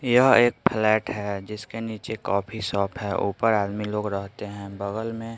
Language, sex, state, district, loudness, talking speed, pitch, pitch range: Hindi, male, Bihar, Patna, -25 LUFS, 190 wpm, 105 Hz, 100-110 Hz